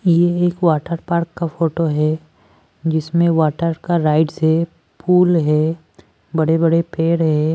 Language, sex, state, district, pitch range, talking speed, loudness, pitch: Hindi, female, Maharashtra, Washim, 155-170 Hz, 145 wpm, -17 LUFS, 165 Hz